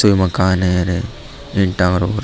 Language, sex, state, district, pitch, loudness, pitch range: Marwari, male, Rajasthan, Nagaur, 95 Hz, -17 LUFS, 90-105 Hz